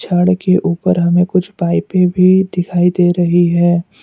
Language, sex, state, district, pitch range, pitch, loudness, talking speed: Hindi, male, Assam, Kamrup Metropolitan, 175-185 Hz, 180 Hz, -13 LUFS, 165 wpm